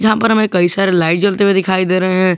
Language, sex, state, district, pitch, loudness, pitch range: Hindi, male, Jharkhand, Garhwa, 190 Hz, -13 LUFS, 185-200 Hz